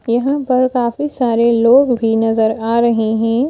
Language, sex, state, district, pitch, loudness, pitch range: Hindi, female, Madhya Pradesh, Bhopal, 235 Hz, -14 LUFS, 225-255 Hz